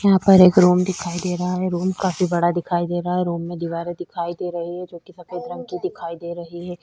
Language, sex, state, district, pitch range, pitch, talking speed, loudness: Hindi, female, Chhattisgarh, Sukma, 175-185 Hz, 175 Hz, 270 wpm, -20 LUFS